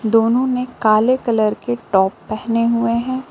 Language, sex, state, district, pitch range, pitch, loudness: Hindi, female, Jharkhand, Palamu, 215-245 Hz, 230 Hz, -17 LUFS